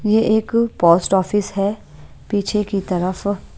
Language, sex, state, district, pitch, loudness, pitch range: Hindi, female, Punjab, Pathankot, 205 Hz, -18 LUFS, 190-220 Hz